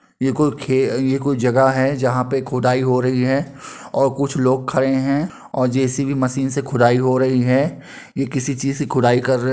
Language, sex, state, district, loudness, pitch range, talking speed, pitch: Hindi, male, Uttar Pradesh, Muzaffarnagar, -18 LUFS, 130-140 Hz, 215 wpm, 130 Hz